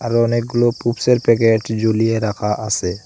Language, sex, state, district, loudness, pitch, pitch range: Bengali, male, Assam, Hailakandi, -17 LUFS, 115 Hz, 110-120 Hz